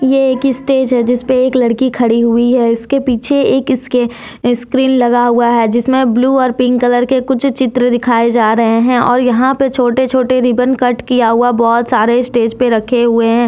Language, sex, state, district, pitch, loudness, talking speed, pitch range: Hindi, female, Jharkhand, Deoghar, 245 Hz, -12 LUFS, 205 wpm, 235-260 Hz